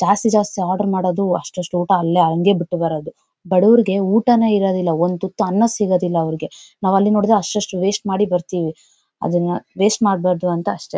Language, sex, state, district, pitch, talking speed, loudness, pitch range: Kannada, female, Karnataka, Bellary, 190 Hz, 175 wpm, -18 LUFS, 175-205 Hz